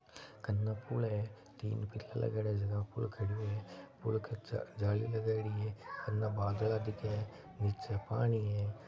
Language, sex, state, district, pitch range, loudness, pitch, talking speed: Marwari, male, Rajasthan, Nagaur, 105-110 Hz, -38 LUFS, 110 Hz, 155 wpm